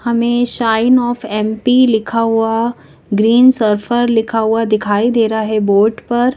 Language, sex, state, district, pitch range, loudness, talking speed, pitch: Hindi, female, Madhya Pradesh, Bhopal, 220-240 Hz, -14 LUFS, 140 wpm, 225 Hz